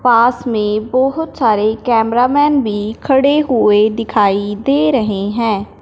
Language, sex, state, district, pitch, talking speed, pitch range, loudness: Hindi, male, Punjab, Fazilka, 230 Hz, 135 wpm, 210-265 Hz, -14 LUFS